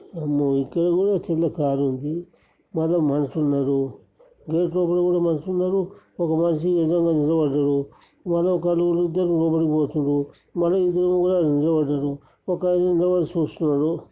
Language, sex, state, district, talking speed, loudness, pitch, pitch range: Telugu, male, Telangana, Karimnagar, 115 wpm, -22 LUFS, 165 Hz, 150-175 Hz